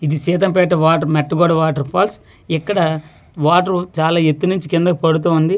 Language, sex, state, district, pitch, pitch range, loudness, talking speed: Telugu, male, Andhra Pradesh, Manyam, 165 Hz, 160-180 Hz, -16 LUFS, 150 wpm